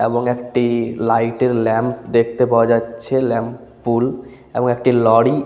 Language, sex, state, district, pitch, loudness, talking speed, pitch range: Bengali, male, West Bengal, Paschim Medinipur, 120 Hz, -17 LUFS, 155 wpm, 115-125 Hz